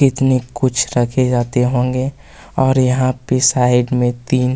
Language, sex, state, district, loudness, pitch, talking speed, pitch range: Hindi, male, Chhattisgarh, Kabirdham, -16 LUFS, 130 Hz, 145 wpm, 125-130 Hz